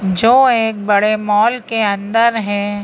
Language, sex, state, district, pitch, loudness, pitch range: Hindi, female, Madhya Pradesh, Bhopal, 210 Hz, -14 LUFS, 205-230 Hz